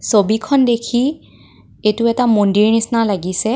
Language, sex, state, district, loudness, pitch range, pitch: Assamese, female, Assam, Kamrup Metropolitan, -15 LUFS, 210-240 Hz, 225 Hz